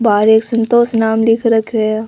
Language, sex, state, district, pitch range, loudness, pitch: Rajasthani, female, Rajasthan, Nagaur, 220-230 Hz, -13 LUFS, 225 Hz